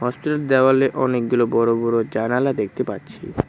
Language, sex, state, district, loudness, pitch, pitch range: Bengali, male, West Bengal, Cooch Behar, -19 LUFS, 125 Hz, 115-135 Hz